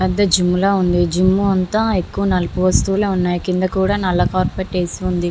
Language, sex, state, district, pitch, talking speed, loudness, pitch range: Telugu, female, Andhra Pradesh, Visakhapatnam, 185 Hz, 180 wpm, -17 LUFS, 180-195 Hz